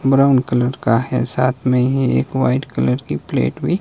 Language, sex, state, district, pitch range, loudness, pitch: Hindi, male, Himachal Pradesh, Shimla, 125-135 Hz, -17 LUFS, 130 Hz